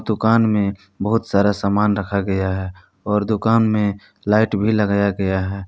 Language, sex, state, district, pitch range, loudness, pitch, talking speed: Hindi, male, Jharkhand, Palamu, 100-110 Hz, -19 LUFS, 100 Hz, 170 wpm